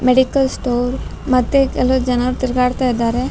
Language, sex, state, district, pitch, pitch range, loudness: Kannada, female, Karnataka, Raichur, 255 Hz, 250-260 Hz, -17 LUFS